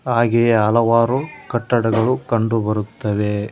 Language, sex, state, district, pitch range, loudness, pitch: Kannada, male, Karnataka, Koppal, 110-120 Hz, -18 LUFS, 115 Hz